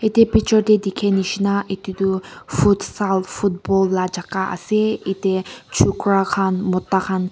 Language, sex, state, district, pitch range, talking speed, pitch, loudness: Nagamese, female, Nagaland, Kohima, 190-205 Hz, 130 wpm, 195 Hz, -19 LUFS